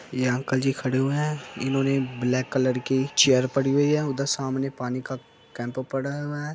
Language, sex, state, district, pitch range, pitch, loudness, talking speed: Hindi, male, Uttar Pradesh, Jyotiba Phule Nagar, 130-140 Hz, 135 Hz, -25 LUFS, 200 wpm